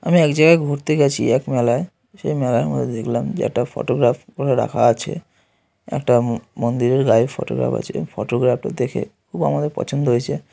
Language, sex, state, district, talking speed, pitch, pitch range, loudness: Bengali, male, West Bengal, North 24 Parganas, 160 wpm, 125 Hz, 120-150 Hz, -19 LUFS